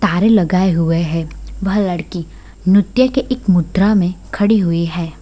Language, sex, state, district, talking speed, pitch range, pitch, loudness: Hindi, female, Bihar, Sitamarhi, 160 wpm, 170-205 Hz, 185 Hz, -15 LUFS